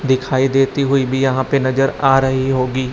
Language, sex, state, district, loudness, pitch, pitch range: Hindi, male, Chhattisgarh, Raipur, -16 LUFS, 135 Hz, 130-135 Hz